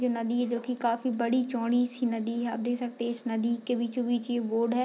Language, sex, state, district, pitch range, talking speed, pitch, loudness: Hindi, female, Bihar, Madhepura, 235-245 Hz, 260 wpm, 240 Hz, -29 LUFS